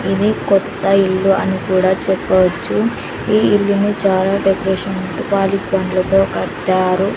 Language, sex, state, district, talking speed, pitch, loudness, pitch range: Telugu, female, Andhra Pradesh, Sri Satya Sai, 90 wpm, 195 Hz, -16 LUFS, 185-195 Hz